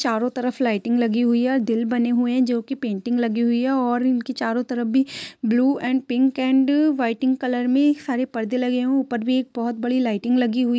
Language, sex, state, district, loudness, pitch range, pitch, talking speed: Hindi, female, Jharkhand, Jamtara, -21 LUFS, 240-260 Hz, 245 Hz, 240 wpm